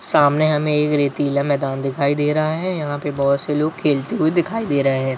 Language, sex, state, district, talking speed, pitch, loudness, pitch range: Hindi, male, Bihar, Begusarai, 230 wpm, 145 Hz, -19 LUFS, 140-155 Hz